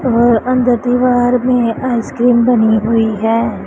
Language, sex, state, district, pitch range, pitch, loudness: Hindi, female, Punjab, Pathankot, 225-245 Hz, 240 Hz, -13 LUFS